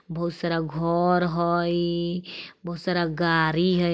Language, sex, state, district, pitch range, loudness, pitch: Bajjika, female, Bihar, Vaishali, 170-175 Hz, -24 LUFS, 170 Hz